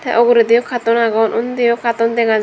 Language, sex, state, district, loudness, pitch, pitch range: Chakma, female, Tripura, Dhalai, -14 LUFS, 235 Hz, 230-240 Hz